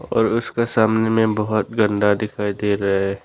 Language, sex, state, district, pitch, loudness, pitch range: Hindi, male, Arunachal Pradesh, Longding, 110 Hz, -19 LUFS, 105-110 Hz